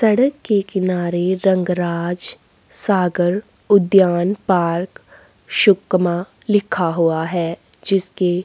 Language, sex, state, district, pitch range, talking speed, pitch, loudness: Hindi, female, Chhattisgarh, Sukma, 175-195 Hz, 85 wpm, 185 Hz, -18 LUFS